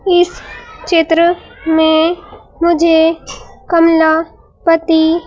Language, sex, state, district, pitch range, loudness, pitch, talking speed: Hindi, female, Madhya Pradesh, Bhopal, 320-340 Hz, -12 LUFS, 330 Hz, 70 wpm